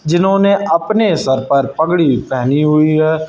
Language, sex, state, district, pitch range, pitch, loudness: Hindi, male, Uttar Pradesh, Lucknow, 140-180 Hz, 160 Hz, -13 LUFS